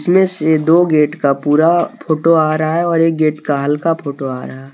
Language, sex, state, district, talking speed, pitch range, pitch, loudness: Hindi, male, Jharkhand, Deoghar, 225 wpm, 145-165 Hz, 155 Hz, -14 LUFS